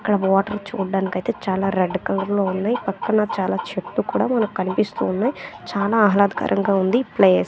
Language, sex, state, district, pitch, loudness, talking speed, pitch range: Telugu, female, Andhra Pradesh, Manyam, 200 Hz, -21 LUFS, 150 wpm, 190-215 Hz